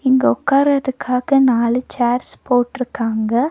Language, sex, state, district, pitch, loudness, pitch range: Tamil, female, Tamil Nadu, Nilgiris, 250 Hz, -17 LUFS, 240-270 Hz